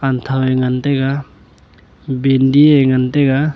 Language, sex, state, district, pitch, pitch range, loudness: Wancho, male, Arunachal Pradesh, Longding, 135 Hz, 130-140 Hz, -14 LUFS